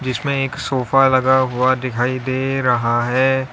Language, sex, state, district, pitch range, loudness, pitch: Hindi, male, Uttar Pradesh, Lalitpur, 125-135 Hz, -17 LUFS, 130 Hz